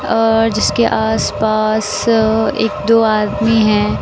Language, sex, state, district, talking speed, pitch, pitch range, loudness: Hindi, female, Bihar, West Champaran, 135 wpm, 220 Hz, 215-225 Hz, -14 LUFS